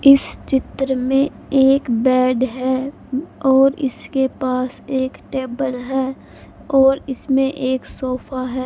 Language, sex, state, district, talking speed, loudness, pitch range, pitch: Hindi, female, Haryana, Charkhi Dadri, 120 wpm, -19 LUFS, 255-270 Hz, 265 Hz